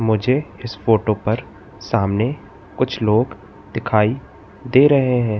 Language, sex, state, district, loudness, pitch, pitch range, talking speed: Hindi, male, Madhya Pradesh, Katni, -19 LUFS, 110 Hz, 100-125 Hz, 120 wpm